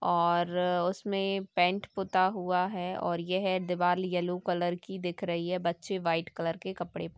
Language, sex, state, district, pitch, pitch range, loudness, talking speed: Hindi, female, Chhattisgarh, Sukma, 180 Hz, 175-190 Hz, -31 LUFS, 175 wpm